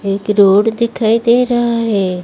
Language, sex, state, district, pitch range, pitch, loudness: Hindi, female, Odisha, Malkangiri, 200-235 Hz, 220 Hz, -13 LUFS